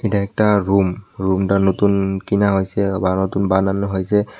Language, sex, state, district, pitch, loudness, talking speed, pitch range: Bengali, male, Tripura, West Tripura, 100 Hz, -18 LUFS, 135 wpm, 95-100 Hz